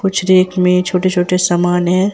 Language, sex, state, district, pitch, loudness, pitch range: Hindi, female, Jharkhand, Ranchi, 180 Hz, -13 LUFS, 180-185 Hz